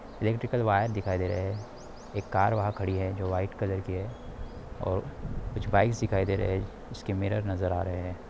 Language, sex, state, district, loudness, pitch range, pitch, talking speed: Hindi, male, Bihar, Darbhanga, -30 LUFS, 95-105 Hz, 95 Hz, 195 wpm